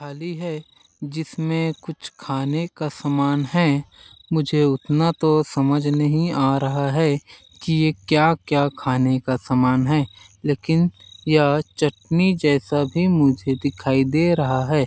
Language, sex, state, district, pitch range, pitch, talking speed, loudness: Hindi, male, Chhattisgarh, Balrampur, 135-160 Hz, 145 Hz, 135 wpm, -20 LUFS